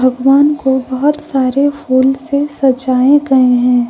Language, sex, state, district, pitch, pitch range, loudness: Hindi, female, Jharkhand, Deoghar, 265 Hz, 255-285 Hz, -12 LUFS